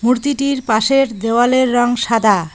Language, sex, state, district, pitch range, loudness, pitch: Bengali, female, West Bengal, Cooch Behar, 225-260 Hz, -15 LUFS, 240 Hz